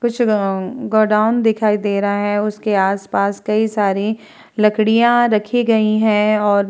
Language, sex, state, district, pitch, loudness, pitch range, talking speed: Hindi, female, Bihar, Vaishali, 215 Hz, -16 LUFS, 205-220 Hz, 135 wpm